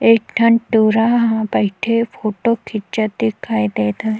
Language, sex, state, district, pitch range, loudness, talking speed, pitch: Chhattisgarhi, female, Chhattisgarh, Sukma, 215-230 Hz, -17 LUFS, 155 wpm, 220 Hz